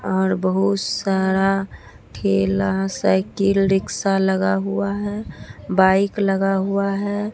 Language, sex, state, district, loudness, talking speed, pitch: Hindi, female, Bihar, Katihar, -20 LUFS, 105 wpm, 190 Hz